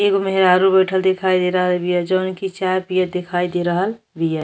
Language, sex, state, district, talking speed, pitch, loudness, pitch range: Bhojpuri, female, Uttar Pradesh, Deoria, 205 wpm, 185 Hz, -18 LUFS, 180-190 Hz